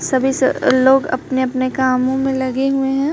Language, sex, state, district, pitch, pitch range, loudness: Hindi, female, Bihar, Kaimur, 265 Hz, 260-270 Hz, -16 LUFS